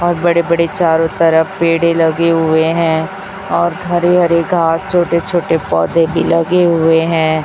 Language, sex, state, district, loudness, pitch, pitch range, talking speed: Hindi, female, Chhattisgarh, Raipur, -13 LUFS, 165 Hz, 165-175 Hz, 160 wpm